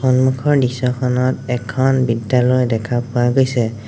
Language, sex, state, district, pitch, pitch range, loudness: Assamese, male, Assam, Sonitpur, 125 Hz, 120-130 Hz, -17 LUFS